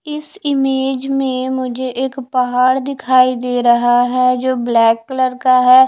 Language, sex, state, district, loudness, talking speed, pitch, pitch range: Hindi, female, Odisha, Khordha, -15 LUFS, 155 wpm, 255 Hz, 250-265 Hz